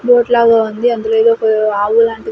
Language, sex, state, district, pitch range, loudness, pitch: Telugu, female, Andhra Pradesh, Sri Satya Sai, 220-235 Hz, -12 LUFS, 230 Hz